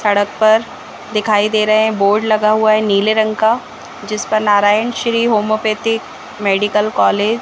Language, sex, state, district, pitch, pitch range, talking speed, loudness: Hindi, female, Madhya Pradesh, Bhopal, 215 Hz, 210-220 Hz, 170 wpm, -14 LUFS